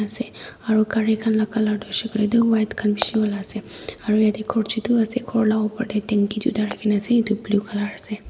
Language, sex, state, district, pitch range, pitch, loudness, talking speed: Nagamese, female, Nagaland, Dimapur, 210-225 Hz, 215 Hz, -22 LUFS, 240 wpm